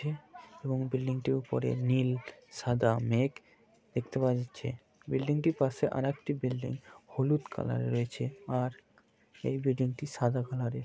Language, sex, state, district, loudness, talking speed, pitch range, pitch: Bengali, male, West Bengal, Purulia, -33 LUFS, 145 wpm, 125-135 Hz, 130 Hz